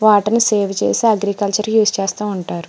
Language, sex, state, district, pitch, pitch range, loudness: Telugu, female, Andhra Pradesh, Srikakulam, 210 Hz, 200-220 Hz, -16 LUFS